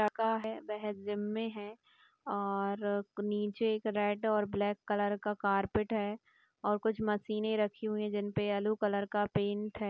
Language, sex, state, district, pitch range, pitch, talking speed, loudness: Hindi, female, Rajasthan, Nagaur, 205-215 Hz, 210 Hz, 170 wpm, -34 LUFS